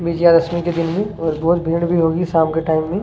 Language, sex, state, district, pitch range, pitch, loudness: Hindi, male, Chhattisgarh, Kabirdham, 160-170 Hz, 170 Hz, -17 LUFS